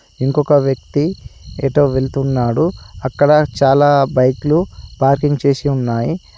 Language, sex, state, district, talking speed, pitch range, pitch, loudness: Telugu, male, Telangana, Adilabad, 95 wpm, 130-145 Hz, 135 Hz, -15 LUFS